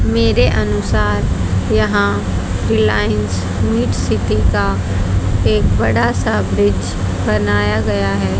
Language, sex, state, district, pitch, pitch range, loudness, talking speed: Hindi, female, Haryana, Jhajjar, 100 Hz, 95-105 Hz, -16 LUFS, 100 wpm